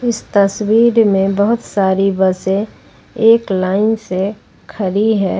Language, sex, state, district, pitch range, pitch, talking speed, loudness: Hindi, female, Jharkhand, Ranchi, 195-220 Hz, 200 Hz, 120 wpm, -14 LUFS